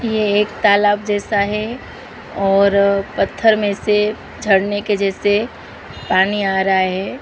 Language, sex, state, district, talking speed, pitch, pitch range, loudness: Hindi, female, Maharashtra, Mumbai Suburban, 135 wpm, 205 Hz, 195-210 Hz, -16 LUFS